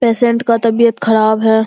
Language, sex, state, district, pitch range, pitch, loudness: Hindi, female, Bihar, Saharsa, 220-235 Hz, 230 Hz, -12 LUFS